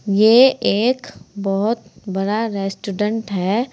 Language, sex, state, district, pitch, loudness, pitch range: Hindi, female, Uttar Pradesh, Saharanpur, 210 Hz, -18 LUFS, 195-225 Hz